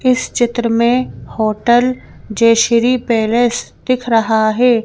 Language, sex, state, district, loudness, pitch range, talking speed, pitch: Hindi, female, Madhya Pradesh, Bhopal, -14 LUFS, 225-250 Hz, 110 wpm, 235 Hz